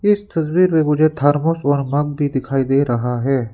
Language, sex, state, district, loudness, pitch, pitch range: Hindi, male, Arunachal Pradesh, Lower Dibang Valley, -17 LUFS, 145 Hz, 135-160 Hz